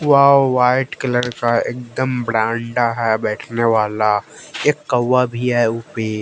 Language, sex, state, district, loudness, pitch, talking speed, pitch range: Hindi, male, Haryana, Jhajjar, -17 LUFS, 120 Hz, 135 wpm, 115-125 Hz